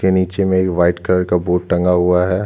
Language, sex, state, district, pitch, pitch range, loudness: Hindi, male, Chhattisgarh, Jashpur, 90 Hz, 90-95 Hz, -16 LUFS